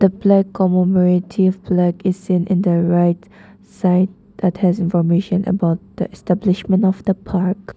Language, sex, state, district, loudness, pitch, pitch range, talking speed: English, female, Nagaland, Dimapur, -17 LUFS, 185 Hz, 180-195 Hz, 130 wpm